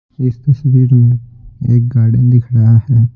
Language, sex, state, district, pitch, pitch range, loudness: Hindi, male, Bihar, Patna, 120 Hz, 115-125 Hz, -11 LUFS